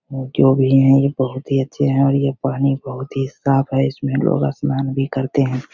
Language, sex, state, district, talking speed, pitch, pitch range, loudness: Hindi, male, Bihar, Begusarai, 210 wpm, 135 Hz, 135-140 Hz, -18 LUFS